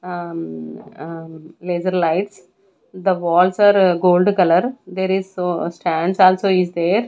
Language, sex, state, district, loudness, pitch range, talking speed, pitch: English, female, Punjab, Kapurthala, -17 LUFS, 170-190 Hz, 135 wpm, 180 Hz